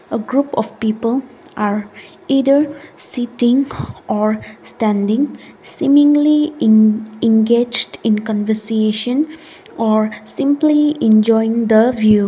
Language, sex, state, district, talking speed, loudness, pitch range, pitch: English, female, Nagaland, Kohima, 90 wpm, -15 LUFS, 215-280 Hz, 230 Hz